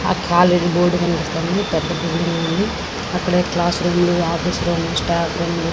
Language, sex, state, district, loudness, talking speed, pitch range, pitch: Telugu, female, Andhra Pradesh, Srikakulam, -18 LUFS, 155 wpm, 165-175 Hz, 170 Hz